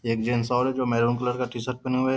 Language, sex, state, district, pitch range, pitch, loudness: Hindi, male, Bihar, Darbhanga, 120-125 Hz, 125 Hz, -25 LUFS